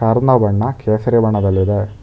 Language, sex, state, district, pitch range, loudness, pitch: Kannada, male, Karnataka, Bangalore, 105-115 Hz, -15 LUFS, 110 Hz